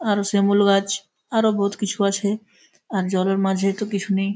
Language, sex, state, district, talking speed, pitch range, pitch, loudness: Bengali, male, West Bengal, Malda, 180 wpm, 195-205 Hz, 200 Hz, -21 LUFS